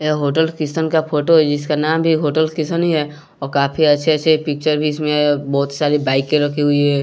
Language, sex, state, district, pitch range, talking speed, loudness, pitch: Hindi, male, Bihar, West Champaran, 145-160 Hz, 215 wpm, -16 LUFS, 150 Hz